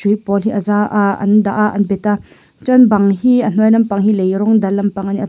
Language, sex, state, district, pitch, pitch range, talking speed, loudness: Mizo, female, Mizoram, Aizawl, 205 Hz, 200-215 Hz, 295 wpm, -14 LUFS